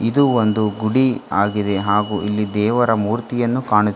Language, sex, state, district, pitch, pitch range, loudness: Kannada, female, Karnataka, Bidar, 110 Hz, 105-120 Hz, -18 LUFS